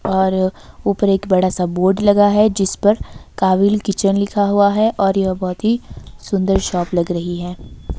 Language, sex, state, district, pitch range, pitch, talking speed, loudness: Hindi, female, Himachal Pradesh, Shimla, 185-205 Hz, 195 Hz, 180 wpm, -17 LUFS